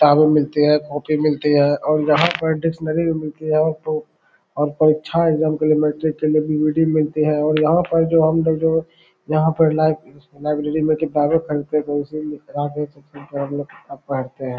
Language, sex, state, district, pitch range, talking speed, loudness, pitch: Hindi, male, Bihar, Saran, 150-155 Hz, 130 wpm, -19 LUFS, 155 Hz